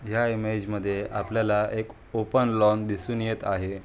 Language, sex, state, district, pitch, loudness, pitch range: Marathi, male, Maharashtra, Aurangabad, 110 Hz, -26 LUFS, 105-110 Hz